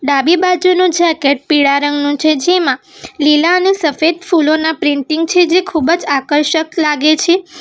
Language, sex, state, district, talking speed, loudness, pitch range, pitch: Gujarati, female, Gujarat, Valsad, 150 wpm, -12 LUFS, 295-350 Hz, 315 Hz